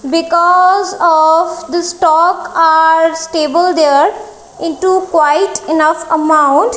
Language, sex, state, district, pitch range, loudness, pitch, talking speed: English, female, Punjab, Kapurthala, 315-350 Hz, -11 LUFS, 330 Hz, 105 wpm